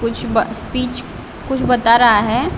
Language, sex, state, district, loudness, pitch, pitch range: Hindi, female, Maharashtra, Gondia, -15 LUFS, 245 Hz, 230-250 Hz